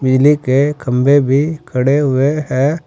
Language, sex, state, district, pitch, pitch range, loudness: Hindi, male, Uttar Pradesh, Saharanpur, 140 Hz, 130-150 Hz, -14 LUFS